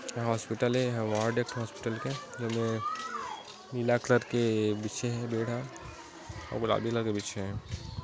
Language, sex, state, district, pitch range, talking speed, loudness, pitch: Chhattisgarhi, male, Chhattisgarh, Korba, 110-120 Hz, 155 wpm, -32 LUFS, 115 Hz